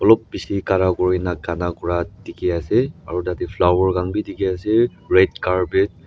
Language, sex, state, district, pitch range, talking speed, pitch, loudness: Nagamese, male, Nagaland, Dimapur, 90-95 Hz, 180 wpm, 90 Hz, -20 LUFS